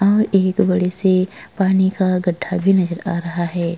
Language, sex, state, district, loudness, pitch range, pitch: Hindi, female, Uttar Pradesh, Jalaun, -18 LUFS, 175-190 Hz, 185 Hz